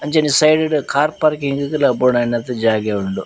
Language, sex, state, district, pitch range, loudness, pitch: Tulu, male, Karnataka, Dakshina Kannada, 120-155 Hz, -16 LUFS, 140 Hz